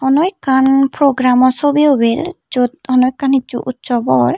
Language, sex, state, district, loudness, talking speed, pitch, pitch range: Chakma, female, Tripura, Unakoti, -14 LUFS, 150 wpm, 265 Hz, 250-285 Hz